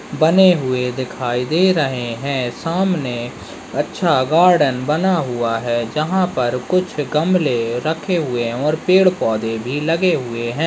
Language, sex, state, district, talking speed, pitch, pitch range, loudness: Hindi, male, Uttarakhand, Tehri Garhwal, 145 wpm, 145 Hz, 120-175 Hz, -18 LUFS